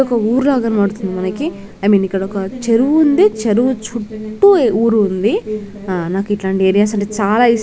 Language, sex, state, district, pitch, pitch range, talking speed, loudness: Telugu, female, Andhra Pradesh, Krishna, 215 Hz, 200-240 Hz, 165 wpm, -15 LUFS